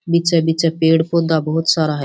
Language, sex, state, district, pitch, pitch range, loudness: Rajasthani, female, Rajasthan, Churu, 160 Hz, 160-165 Hz, -16 LUFS